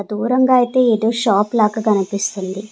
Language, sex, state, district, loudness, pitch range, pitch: Telugu, female, Andhra Pradesh, Sri Satya Sai, -16 LUFS, 200-240 Hz, 215 Hz